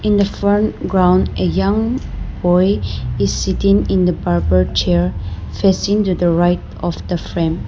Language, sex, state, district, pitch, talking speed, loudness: English, female, Nagaland, Dimapur, 175 Hz, 155 wpm, -16 LUFS